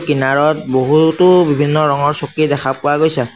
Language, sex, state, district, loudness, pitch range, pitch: Assamese, male, Assam, Sonitpur, -13 LUFS, 140-155 Hz, 145 Hz